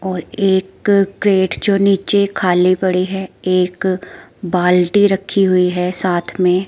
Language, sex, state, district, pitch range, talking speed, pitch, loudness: Hindi, female, Himachal Pradesh, Shimla, 180-195 Hz, 135 wpm, 185 Hz, -15 LUFS